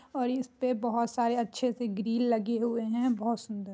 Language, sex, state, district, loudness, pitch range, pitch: Hindi, female, Bihar, Muzaffarpur, -30 LUFS, 230-250 Hz, 235 Hz